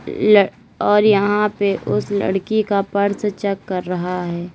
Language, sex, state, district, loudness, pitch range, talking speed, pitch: Hindi, female, Uttar Pradesh, Lalitpur, -18 LUFS, 185-205 Hz, 160 wpm, 200 Hz